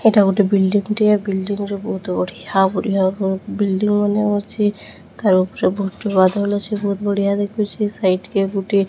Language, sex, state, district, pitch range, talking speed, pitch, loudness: Odia, female, Odisha, Sambalpur, 195-205 Hz, 160 wpm, 200 Hz, -18 LUFS